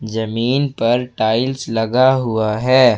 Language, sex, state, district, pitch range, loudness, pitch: Hindi, male, Jharkhand, Ranchi, 110-130 Hz, -17 LUFS, 120 Hz